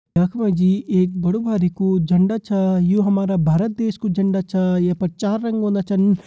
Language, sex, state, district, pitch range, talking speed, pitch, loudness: Hindi, male, Uttarakhand, Tehri Garhwal, 180-205 Hz, 210 wpm, 195 Hz, -19 LUFS